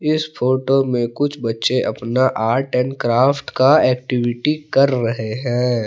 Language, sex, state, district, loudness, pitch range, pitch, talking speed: Hindi, male, Jharkhand, Palamu, -18 LUFS, 120-135 Hz, 125 Hz, 145 wpm